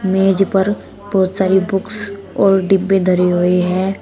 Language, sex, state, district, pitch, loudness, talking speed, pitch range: Hindi, female, Uttar Pradesh, Shamli, 195 Hz, -15 LUFS, 150 wpm, 190-195 Hz